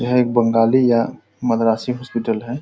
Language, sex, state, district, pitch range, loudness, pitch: Hindi, male, Bihar, Purnia, 115-125 Hz, -18 LUFS, 120 Hz